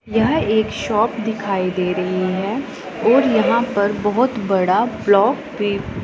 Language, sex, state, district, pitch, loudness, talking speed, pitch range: Hindi, female, Punjab, Pathankot, 210 Hz, -18 LUFS, 140 wpm, 195-235 Hz